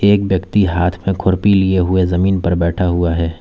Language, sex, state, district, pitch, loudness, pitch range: Hindi, male, Uttar Pradesh, Lalitpur, 95 Hz, -15 LUFS, 90-95 Hz